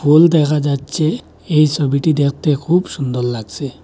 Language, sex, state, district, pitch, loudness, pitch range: Bengali, male, Assam, Hailakandi, 145 Hz, -16 LUFS, 140-155 Hz